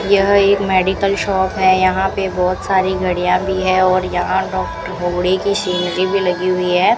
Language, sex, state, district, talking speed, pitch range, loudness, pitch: Hindi, female, Rajasthan, Bikaner, 190 wpm, 185-195 Hz, -16 LUFS, 185 Hz